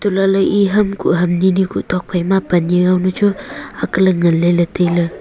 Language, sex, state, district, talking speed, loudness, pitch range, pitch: Wancho, female, Arunachal Pradesh, Longding, 195 wpm, -15 LUFS, 175-195 Hz, 185 Hz